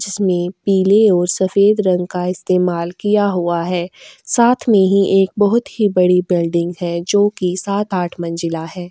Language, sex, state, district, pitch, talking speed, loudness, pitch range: Hindi, female, Goa, North and South Goa, 185 Hz, 160 wpm, -16 LUFS, 175-205 Hz